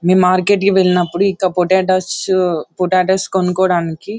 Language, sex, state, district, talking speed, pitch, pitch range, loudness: Telugu, male, Andhra Pradesh, Anantapur, 130 wpm, 185 Hz, 180-190 Hz, -15 LUFS